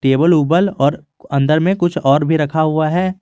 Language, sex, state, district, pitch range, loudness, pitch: Hindi, male, Jharkhand, Garhwa, 145-175 Hz, -15 LUFS, 155 Hz